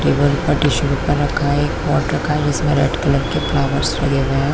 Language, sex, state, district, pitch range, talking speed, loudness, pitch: Hindi, female, Chhattisgarh, Korba, 140-145 Hz, 235 wpm, -17 LUFS, 145 Hz